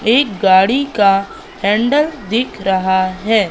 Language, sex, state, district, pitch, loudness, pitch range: Hindi, female, Madhya Pradesh, Katni, 205 Hz, -14 LUFS, 190-235 Hz